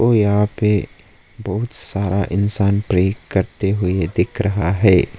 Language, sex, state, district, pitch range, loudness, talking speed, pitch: Hindi, male, Arunachal Pradesh, Lower Dibang Valley, 95-105 Hz, -18 LUFS, 125 wpm, 100 Hz